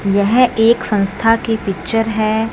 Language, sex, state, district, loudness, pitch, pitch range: Hindi, female, Punjab, Fazilka, -15 LUFS, 225 Hz, 205-225 Hz